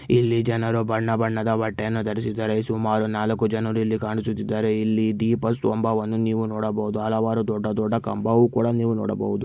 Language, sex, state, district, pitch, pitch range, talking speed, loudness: Kannada, male, Karnataka, Mysore, 110 Hz, 110-115 Hz, 145 wpm, -23 LUFS